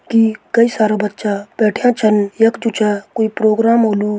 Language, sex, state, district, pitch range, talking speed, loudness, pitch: Garhwali, male, Uttarakhand, Tehri Garhwal, 210-230 Hz, 170 wpm, -15 LUFS, 215 Hz